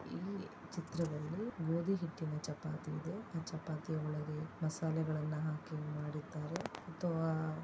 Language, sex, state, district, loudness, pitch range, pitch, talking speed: Kannada, female, Karnataka, Dakshina Kannada, -41 LUFS, 155-170 Hz, 160 Hz, 100 wpm